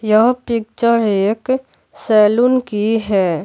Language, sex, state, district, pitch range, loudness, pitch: Hindi, male, Bihar, Patna, 210-240 Hz, -16 LUFS, 220 Hz